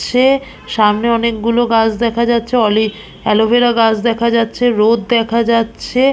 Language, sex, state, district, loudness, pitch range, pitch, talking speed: Bengali, female, West Bengal, Purulia, -14 LUFS, 225-240 Hz, 230 Hz, 135 wpm